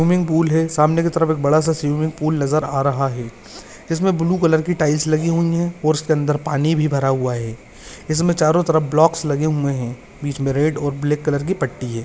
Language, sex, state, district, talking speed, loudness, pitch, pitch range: Hindi, male, Maharashtra, Pune, 240 wpm, -19 LUFS, 155 Hz, 140-160 Hz